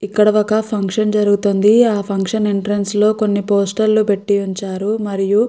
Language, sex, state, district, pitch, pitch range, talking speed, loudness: Telugu, female, Andhra Pradesh, Guntur, 205 Hz, 200-215 Hz, 140 wpm, -16 LUFS